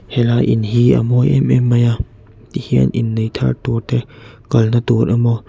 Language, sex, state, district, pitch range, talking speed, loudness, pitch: Mizo, male, Mizoram, Aizawl, 110-120 Hz, 185 wpm, -15 LUFS, 115 Hz